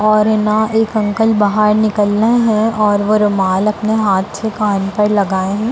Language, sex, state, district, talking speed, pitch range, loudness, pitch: Hindi, female, Bihar, Darbhanga, 180 wpm, 205-220 Hz, -14 LUFS, 215 Hz